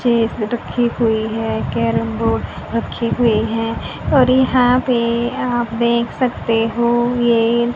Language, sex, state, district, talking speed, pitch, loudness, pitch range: Hindi, female, Haryana, Rohtak, 130 wpm, 235 Hz, -17 LUFS, 225-240 Hz